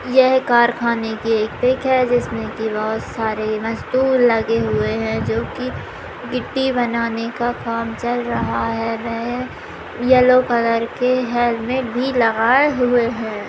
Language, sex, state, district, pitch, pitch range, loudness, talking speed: Hindi, female, Bihar, Begusarai, 235 Hz, 225-250 Hz, -18 LUFS, 140 wpm